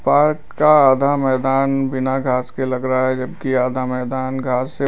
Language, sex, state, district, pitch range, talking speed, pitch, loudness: Hindi, male, Uttar Pradesh, Lalitpur, 130-135 Hz, 185 wpm, 130 Hz, -18 LUFS